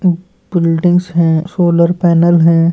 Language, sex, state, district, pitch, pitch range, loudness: Hindi, male, West Bengal, Malda, 170 Hz, 165-175 Hz, -12 LUFS